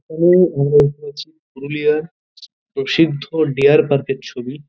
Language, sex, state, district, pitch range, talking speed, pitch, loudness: Bengali, male, West Bengal, Purulia, 140-160 Hz, 90 wpm, 145 Hz, -16 LUFS